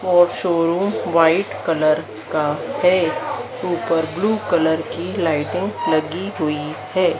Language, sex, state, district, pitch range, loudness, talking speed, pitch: Hindi, female, Madhya Pradesh, Dhar, 155-180 Hz, -20 LUFS, 115 wpm, 165 Hz